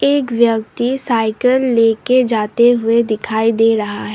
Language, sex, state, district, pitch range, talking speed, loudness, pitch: Hindi, female, Assam, Sonitpur, 220-245 Hz, 160 wpm, -15 LUFS, 230 Hz